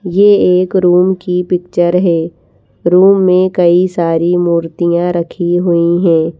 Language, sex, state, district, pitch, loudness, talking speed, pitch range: Hindi, female, Madhya Pradesh, Bhopal, 175 Hz, -11 LUFS, 130 wpm, 170-180 Hz